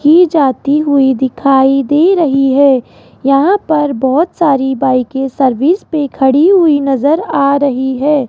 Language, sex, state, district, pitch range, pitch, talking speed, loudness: Hindi, female, Rajasthan, Jaipur, 265-305 Hz, 280 Hz, 145 wpm, -11 LUFS